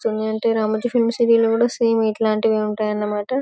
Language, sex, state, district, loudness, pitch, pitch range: Telugu, female, Telangana, Karimnagar, -19 LUFS, 225 Hz, 215-230 Hz